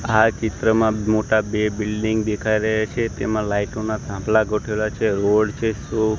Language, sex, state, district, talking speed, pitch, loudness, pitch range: Gujarati, male, Gujarat, Gandhinagar, 165 wpm, 110 Hz, -21 LUFS, 105-110 Hz